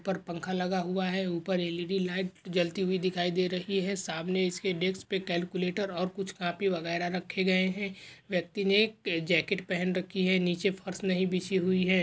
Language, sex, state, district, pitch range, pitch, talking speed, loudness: Hindi, male, Maharashtra, Dhule, 180-190 Hz, 185 Hz, 195 wpm, -30 LUFS